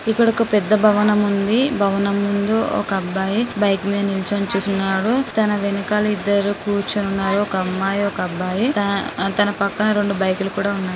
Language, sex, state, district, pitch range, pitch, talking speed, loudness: Telugu, female, Andhra Pradesh, Guntur, 195-210 Hz, 200 Hz, 160 wpm, -19 LUFS